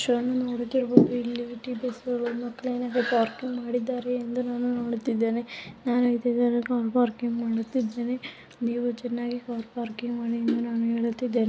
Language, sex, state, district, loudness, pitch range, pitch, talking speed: Kannada, female, Karnataka, Dharwad, -27 LUFS, 235-245 Hz, 240 Hz, 120 wpm